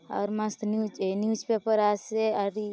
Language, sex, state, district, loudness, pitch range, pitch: Halbi, female, Chhattisgarh, Bastar, -28 LUFS, 205-220 Hz, 215 Hz